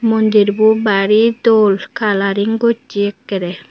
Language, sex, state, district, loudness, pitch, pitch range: Chakma, female, Tripura, Unakoti, -14 LUFS, 210 Hz, 200-220 Hz